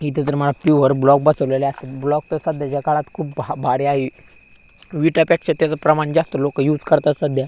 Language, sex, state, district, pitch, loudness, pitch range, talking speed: Marathi, male, Maharashtra, Aurangabad, 145 Hz, -18 LUFS, 140-155 Hz, 195 wpm